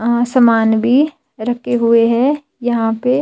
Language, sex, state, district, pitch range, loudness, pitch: Hindi, female, Himachal Pradesh, Shimla, 230-255 Hz, -14 LUFS, 240 Hz